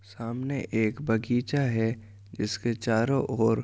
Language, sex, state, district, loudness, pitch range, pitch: Hindi, male, Uttar Pradesh, Jyotiba Phule Nagar, -28 LUFS, 110-130 Hz, 115 Hz